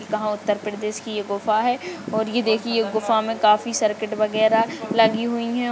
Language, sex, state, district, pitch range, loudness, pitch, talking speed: Hindi, female, Uttar Pradesh, Budaun, 215-225 Hz, -22 LUFS, 220 Hz, 190 wpm